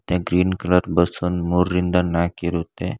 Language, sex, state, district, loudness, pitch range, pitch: Kannada, male, Karnataka, Bangalore, -21 LUFS, 85-90 Hz, 90 Hz